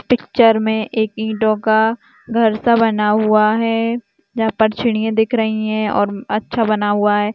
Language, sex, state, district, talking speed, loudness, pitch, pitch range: Hindi, female, Maharashtra, Aurangabad, 170 wpm, -16 LUFS, 220 Hz, 215-225 Hz